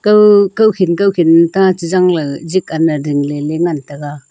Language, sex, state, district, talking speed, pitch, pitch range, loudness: Wancho, female, Arunachal Pradesh, Longding, 140 wpm, 170 Hz, 150-190 Hz, -12 LUFS